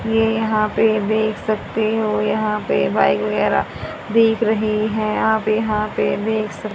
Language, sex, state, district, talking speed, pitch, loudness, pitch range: Hindi, female, Haryana, Jhajjar, 160 wpm, 215 Hz, -19 LUFS, 210-220 Hz